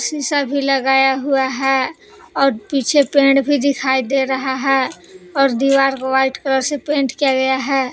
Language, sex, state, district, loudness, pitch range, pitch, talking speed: Hindi, female, Jharkhand, Palamu, -16 LUFS, 265-280 Hz, 275 Hz, 175 wpm